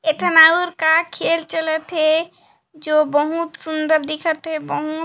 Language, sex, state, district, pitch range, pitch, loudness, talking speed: Chhattisgarhi, female, Chhattisgarh, Jashpur, 310-330 Hz, 320 Hz, -17 LUFS, 155 wpm